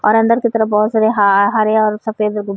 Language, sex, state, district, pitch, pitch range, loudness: Hindi, female, Uttar Pradesh, Varanasi, 215 Hz, 210-220 Hz, -14 LUFS